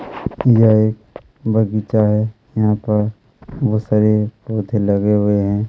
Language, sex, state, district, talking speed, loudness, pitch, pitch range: Hindi, male, Chhattisgarh, Kabirdham, 125 wpm, -17 LUFS, 110 Hz, 105-110 Hz